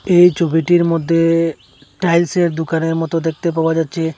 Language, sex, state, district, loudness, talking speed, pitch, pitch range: Bengali, male, Assam, Hailakandi, -16 LUFS, 130 wpm, 165 Hz, 160-170 Hz